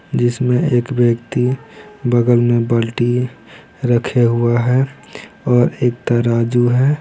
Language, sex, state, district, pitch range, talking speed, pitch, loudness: Hindi, male, Bihar, Araria, 120-125 Hz, 110 wpm, 120 Hz, -16 LUFS